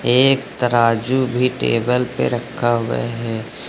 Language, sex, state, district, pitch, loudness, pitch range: Hindi, male, Uttar Pradesh, Lucknow, 120 Hz, -18 LUFS, 115-125 Hz